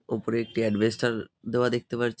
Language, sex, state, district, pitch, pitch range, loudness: Bengali, male, West Bengal, Jalpaiguri, 115 Hz, 110-120 Hz, -27 LUFS